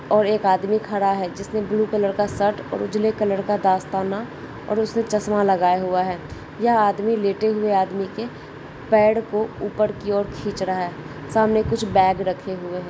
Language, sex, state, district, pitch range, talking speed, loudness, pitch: Hindi, female, Rajasthan, Nagaur, 190-215 Hz, 190 wpm, -21 LUFS, 205 Hz